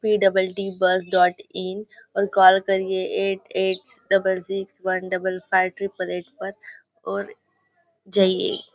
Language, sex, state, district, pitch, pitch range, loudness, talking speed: Hindi, female, Maharashtra, Nagpur, 190 Hz, 185-195 Hz, -22 LUFS, 145 wpm